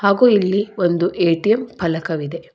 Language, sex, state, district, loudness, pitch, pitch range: Kannada, female, Karnataka, Bangalore, -18 LUFS, 180 Hz, 170-205 Hz